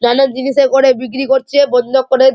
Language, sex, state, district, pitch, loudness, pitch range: Bengali, male, West Bengal, Malda, 265 Hz, -12 LUFS, 260-270 Hz